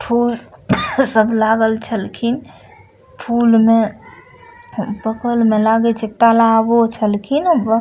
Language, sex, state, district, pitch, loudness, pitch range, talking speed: Maithili, female, Bihar, Madhepura, 225 Hz, -15 LUFS, 220-235 Hz, 125 wpm